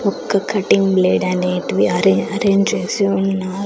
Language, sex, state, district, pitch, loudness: Telugu, female, Andhra Pradesh, Sri Satya Sai, 195 Hz, -17 LUFS